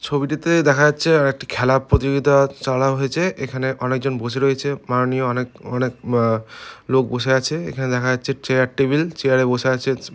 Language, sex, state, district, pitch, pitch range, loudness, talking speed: Bengali, male, West Bengal, Malda, 130 Hz, 125-140 Hz, -19 LUFS, 165 wpm